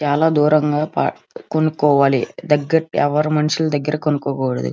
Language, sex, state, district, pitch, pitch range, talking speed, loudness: Telugu, female, Andhra Pradesh, Krishna, 150 Hz, 145-155 Hz, 125 wpm, -18 LUFS